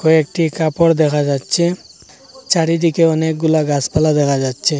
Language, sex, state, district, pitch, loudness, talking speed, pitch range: Bengali, male, Assam, Hailakandi, 160 Hz, -15 LUFS, 110 wpm, 150-165 Hz